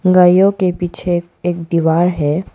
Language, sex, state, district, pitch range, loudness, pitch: Hindi, female, Arunachal Pradesh, Papum Pare, 170-185 Hz, -15 LUFS, 175 Hz